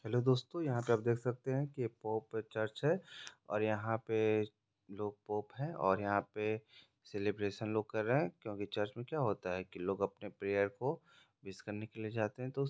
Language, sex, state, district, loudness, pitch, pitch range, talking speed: Hindi, male, Bihar, Jahanabad, -38 LUFS, 110 Hz, 105-120 Hz, 210 wpm